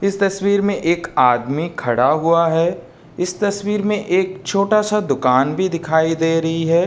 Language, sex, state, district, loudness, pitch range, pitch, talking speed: Hindi, male, Uttar Pradesh, Jalaun, -18 LUFS, 160-200 Hz, 170 Hz, 175 wpm